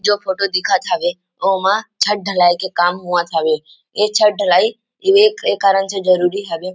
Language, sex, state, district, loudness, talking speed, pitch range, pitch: Chhattisgarhi, male, Chhattisgarh, Rajnandgaon, -16 LUFS, 185 wpm, 180-210 Hz, 195 Hz